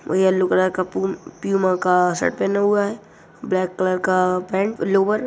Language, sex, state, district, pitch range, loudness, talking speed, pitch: Hindi, female, Uttar Pradesh, Budaun, 185-200 Hz, -20 LUFS, 205 wpm, 185 Hz